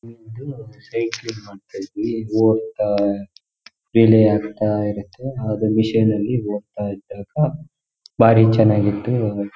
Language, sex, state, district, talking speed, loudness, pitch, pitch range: Kannada, male, Karnataka, Shimoga, 105 wpm, -19 LUFS, 110 Hz, 105-115 Hz